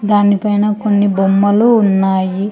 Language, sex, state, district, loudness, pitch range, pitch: Telugu, female, Telangana, Hyderabad, -13 LUFS, 195-210 Hz, 205 Hz